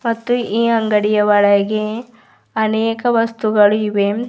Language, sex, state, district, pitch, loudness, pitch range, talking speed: Kannada, female, Karnataka, Bidar, 220 Hz, -16 LUFS, 210-230 Hz, 100 wpm